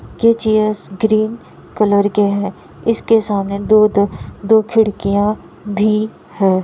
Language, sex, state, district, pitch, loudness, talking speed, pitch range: Hindi, female, Bihar, Kishanganj, 210 Hz, -16 LUFS, 115 wpm, 200-220 Hz